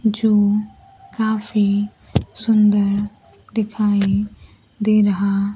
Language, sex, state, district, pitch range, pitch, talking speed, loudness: Hindi, female, Bihar, Kaimur, 205-215 Hz, 210 Hz, 75 wpm, -18 LUFS